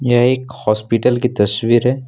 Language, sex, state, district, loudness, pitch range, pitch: Hindi, male, Jharkhand, Deoghar, -16 LUFS, 115-125 Hz, 120 Hz